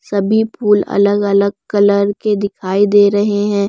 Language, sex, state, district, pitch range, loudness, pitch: Hindi, female, Bihar, West Champaran, 200-205 Hz, -14 LUFS, 205 Hz